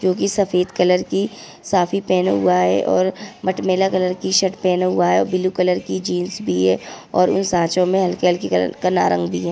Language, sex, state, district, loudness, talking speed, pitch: Hindi, female, Chhattisgarh, Bilaspur, -18 LUFS, 210 wpm, 180 Hz